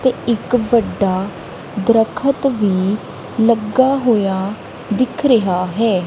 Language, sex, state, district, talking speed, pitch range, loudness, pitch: Punjabi, female, Punjab, Kapurthala, 100 wpm, 195-245 Hz, -17 LUFS, 220 Hz